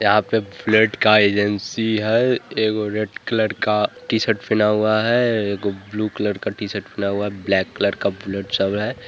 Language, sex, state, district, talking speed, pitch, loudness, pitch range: Hindi, male, Bihar, Vaishali, 170 wpm, 105 Hz, -20 LUFS, 100-110 Hz